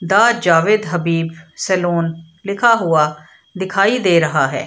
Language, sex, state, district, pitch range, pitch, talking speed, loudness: Hindi, female, Bihar, Samastipur, 165-195 Hz, 170 Hz, 130 wpm, -16 LUFS